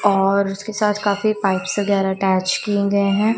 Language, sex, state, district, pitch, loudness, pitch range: Hindi, female, Punjab, Kapurthala, 200 Hz, -19 LUFS, 195-210 Hz